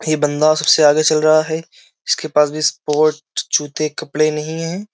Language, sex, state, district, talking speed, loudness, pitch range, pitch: Hindi, male, Uttar Pradesh, Jyotiba Phule Nagar, 180 wpm, -16 LUFS, 150-155 Hz, 155 Hz